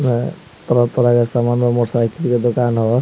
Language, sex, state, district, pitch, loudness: Bhojpuri, male, Bihar, Muzaffarpur, 120 Hz, -17 LUFS